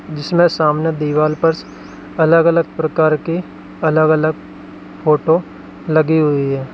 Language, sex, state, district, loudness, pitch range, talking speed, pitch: Hindi, male, Uttar Pradesh, Lalitpur, -15 LUFS, 155-165 Hz, 125 wpm, 155 Hz